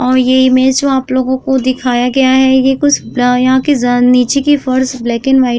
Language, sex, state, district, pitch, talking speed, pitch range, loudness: Hindi, female, Uttar Pradesh, Jyotiba Phule Nagar, 260 Hz, 245 wpm, 250-265 Hz, -11 LUFS